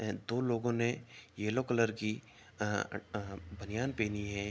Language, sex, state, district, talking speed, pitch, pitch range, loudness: Hindi, male, Uttar Pradesh, Jalaun, 145 wpm, 110 Hz, 105-120 Hz, -36 LUFS